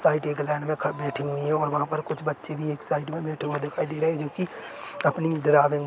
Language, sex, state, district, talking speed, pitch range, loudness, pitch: Hindi, male, Chhattisgarh, Rajnandgaon, 245 wpm, 145-155 Hz, -27 LUFS, 150 Hz